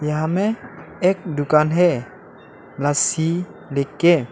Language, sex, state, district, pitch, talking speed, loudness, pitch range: Hindi, male, Arunachal Pradesh, Lower Dibang Valley, 160 Hz, 95 wpm, -20 LUFS, 145-175 Hz